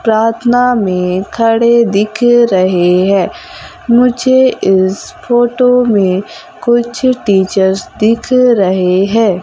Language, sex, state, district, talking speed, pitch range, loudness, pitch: Hindi, female, Madhya Pradesh, Umaria, 95 wpm, 190-245 Hz, -11 LUFS, 230 Hz